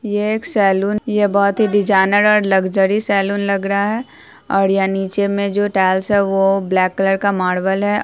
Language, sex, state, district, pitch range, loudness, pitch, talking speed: Hindi, female, Bihar, Saharsa, 195-205 Hz, -16 LUFS, 200 Hz, 195 wpm